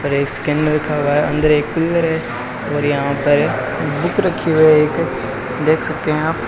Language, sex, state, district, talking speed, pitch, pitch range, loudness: Hindi, male, Rajasthan, Bikaner, 205 wpm, 150 Hz, 140-155 Hz, -17 LUFS